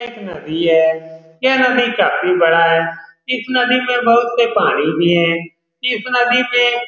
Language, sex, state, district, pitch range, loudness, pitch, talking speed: Hindi, male, Bihar, Saran, 165-245 Hz, -15 LUFS, 215 Hz, 185 wpm